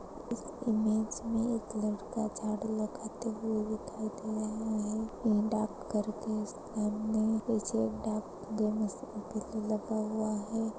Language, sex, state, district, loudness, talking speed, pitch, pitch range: Hindi, female, Maharashtra, Aurangabad, -34 LUFS, 105 wpm, 215 Hz, 215-220 Hz